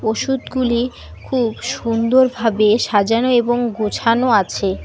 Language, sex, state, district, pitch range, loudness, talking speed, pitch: Bengali, female, West Bengal, Alipurduar, 220-250 Hz, -17 LUFS, 85 wpm, 235 Hz